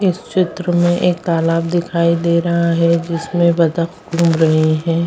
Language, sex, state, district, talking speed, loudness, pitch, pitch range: Hindi, female, Bihar, Bhagalpur, 165 wpm, -16 LUFS, 170 Hz, 165-175 Hz